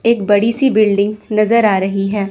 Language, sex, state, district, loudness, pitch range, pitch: Hindi, female, Chandigarh, Chandigarh, -14 LUFS, 200-225 Hz, 210 Hz